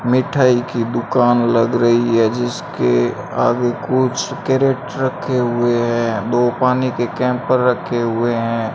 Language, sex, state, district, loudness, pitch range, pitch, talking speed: Hindi, male, Rajasthan, Bikaner, -17 LUFS, 120-125 Hz, 120 Hz, 130 wpm